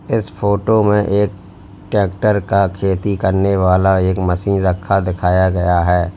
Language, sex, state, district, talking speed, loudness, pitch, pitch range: Hindi, male, Uttar Pradesh, Lalitpur, 145 wpm, -16 LUFS, 95 Hz, 95-100 Hz